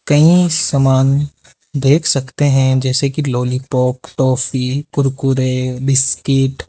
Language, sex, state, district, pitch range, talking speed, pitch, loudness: Hindi, male, Rajasthan, Jaipur, 130-145 Hz, 105 wpm, 135 Hz, -15 LUFS